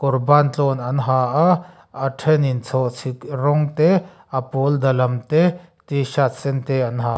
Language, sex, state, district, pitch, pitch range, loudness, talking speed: Mizo, male, Mizoram, Aizawl, 135 Hz, 130-150 Hz, -19 LUFS, 175 wpm